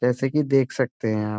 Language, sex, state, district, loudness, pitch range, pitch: Hindi, male, Bihar, Gaya, -23 LUFS, 110-135 Hz, 125 Hz